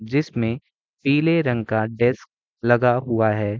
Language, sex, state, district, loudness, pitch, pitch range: Hindi, male, Bihar, Gopalganj, -21 LUFS, 120 Hz, 110-135 Hz